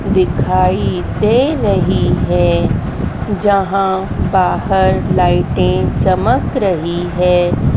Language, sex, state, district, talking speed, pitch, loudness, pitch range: Hindi, female, Madhya Pradesh, Dhar, 75 wpm, 180 Hz, -14 LUFS, 145-195 Hz